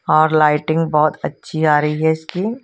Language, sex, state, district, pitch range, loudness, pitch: Hindi, female, Punjab, Kapurthala, 150-165 Hz, -16 LUFS, 155 Hz